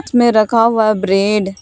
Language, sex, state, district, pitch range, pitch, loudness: Hindi, female, Jharkhand, Palamu, 205-230 Hz, 215 Hz, -13 LUFS